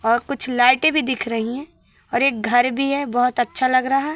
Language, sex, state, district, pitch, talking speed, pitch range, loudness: Hindi, female, Madhya Pradesh, Katni, 255 Hz, 245 wpm, 245-275 Hz, -19 LUFS